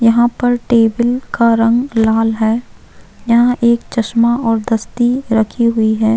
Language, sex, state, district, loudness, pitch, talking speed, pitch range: Hindi, female, Uttarakhand, Tehri Garhwal, -14 LUFS, 230 Hz, 155 wpm, 225-240 Hz